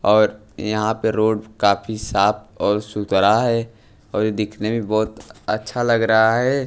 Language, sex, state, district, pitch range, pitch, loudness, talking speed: Hindi, male, Punjab, Pathankot, 105-110 Hz, 110 Hz, -20 LUFS, 160 wpm